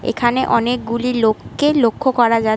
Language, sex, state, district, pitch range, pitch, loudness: Bengali, female, West Bengal, Kolkata, 230-250 Hz, 240 Hz, -17 LUFS